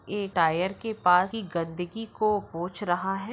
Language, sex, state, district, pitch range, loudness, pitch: Hindi, female, Uttar Pradesh, Jyotiba Phule Nagar, 175-210 Hz, -27 LUFS, 190 Hz